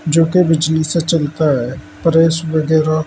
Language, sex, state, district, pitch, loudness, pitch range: Hindi, male, Uttar Pradesh, Saharanpur, 160 Hz, -15 LUFS, 155-165 Hz